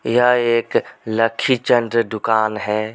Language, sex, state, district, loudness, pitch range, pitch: Hindi, male, Jharkhand, Deoghar, -18 LUFS, 110-120 Hz, 115 Hz